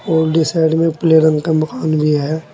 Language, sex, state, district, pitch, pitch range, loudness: Hindi, male, Uttar Pradesh, Saharanpur, 160 Hz, 155-160 Hz, -15 LUFS